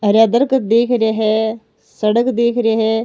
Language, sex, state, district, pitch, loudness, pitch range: Rajasthani, female, Rajasthan, Nagaur, 225 Hz, -15 LUFS, 220-235 Hz